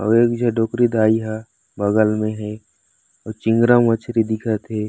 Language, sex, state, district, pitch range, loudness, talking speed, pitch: Chhattisgarhi, male, Chhattisgarh, Raigarh, 110-115 Hz, -19 LUFS, 185 wpm, 110 Hz